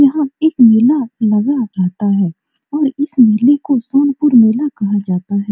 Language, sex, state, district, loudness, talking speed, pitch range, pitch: Hindi, female, Bihar, Supaul, -13 LUFS, 150 wpm, 205-285 Hz, 245 Hz